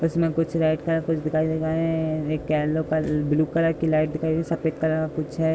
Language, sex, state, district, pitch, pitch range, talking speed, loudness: Hindi, female, Uttar Pradesh, Budaun, 160 Hz, 155-165 Hz, 270 wpm, -24 LUFS